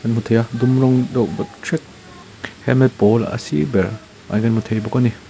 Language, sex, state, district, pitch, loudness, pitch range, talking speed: Mizo, male, Mizoram, Aizawl, 115 Hz, -18 LUFS, 105-125 Hz, 225 wpm